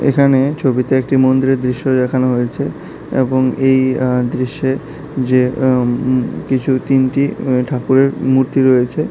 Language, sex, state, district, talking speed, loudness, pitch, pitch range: Bengali, male, Tripura, South Tripura, 130 wpm, -15 LUFS, 130 Hz, 130-135 Hz